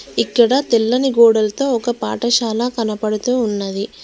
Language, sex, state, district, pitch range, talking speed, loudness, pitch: Telugu, female, Telangana, Mahabubabad, 215-245 Hz, 105 wpm, -16 LUFS, 235 Hz